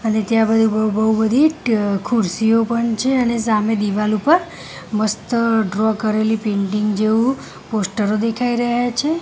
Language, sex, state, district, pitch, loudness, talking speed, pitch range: Gujarati, female, Gujarat, Gandhinagar, 220 Hz, -18 LUFS, 145 wpm, 215-235 Hz